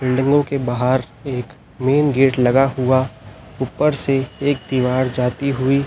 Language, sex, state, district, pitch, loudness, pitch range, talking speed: Hindi, male, Chhattisgarh, Raipur, 130 Hz, -18 LUFS, 125-140 Hz, 145 wpm